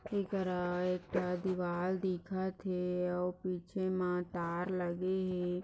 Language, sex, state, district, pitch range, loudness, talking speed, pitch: Hindi, female, Maharashtra, Nagpur, 180-185 Hz, -36 LUFS, 115 wpm, 180 Hz